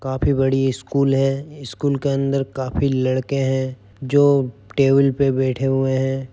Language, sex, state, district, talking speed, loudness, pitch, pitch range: Hindi, male, Uttar Pradesh, Jyotiba Phule Nagar, 150 wpm, -19 LUFS, 135 Hz, 130-140 Hz